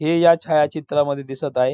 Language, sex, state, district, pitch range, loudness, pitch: Marathi, female, Maharashtra, Dhule, 140-160 Hz, -19 LUFS, 150 Hz